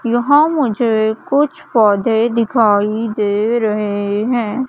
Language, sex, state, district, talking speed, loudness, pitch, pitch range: Hindi, female, Madhya Pradesh, Katni, 100 wpm, -15 LUFS, 225 Hz, 210-245 Hz